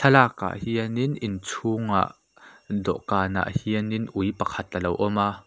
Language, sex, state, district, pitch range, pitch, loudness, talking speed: Mizo, male, Mizoram, Aizawl, 100-115 Hz, 105 Hz, -25 LUFS, 130 wpm